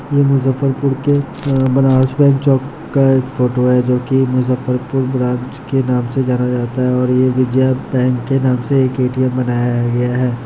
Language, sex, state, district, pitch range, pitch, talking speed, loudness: Hindi, male, Bihar, Muzaffarpur, 125-135 Hz, 130 Hz, 190 wpm, -15 LUFS